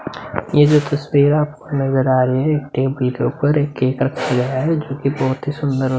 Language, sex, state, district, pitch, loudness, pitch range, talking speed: Hindi, male, Uttar Pradesh, Budaun, 140 Hz, -18 LUFS, 130-150 Hz, 220 wpm